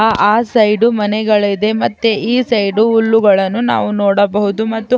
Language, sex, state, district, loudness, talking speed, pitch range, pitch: Kannada, female, Karnataka, Chamarajanagar, -13 LUFS, 110 wpm, 205-225 Hz, 215 Hz